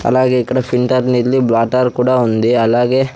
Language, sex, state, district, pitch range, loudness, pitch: Telugu, male, Andhra Pradesh, Sri Satya Sai, 120-130 Hz, -14 LUFS, 125 Hz